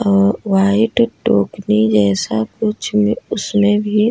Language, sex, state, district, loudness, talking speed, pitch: Hindi, female, Bihar, Vaishali, -16 LUFS, 115 wpm, 200 Hz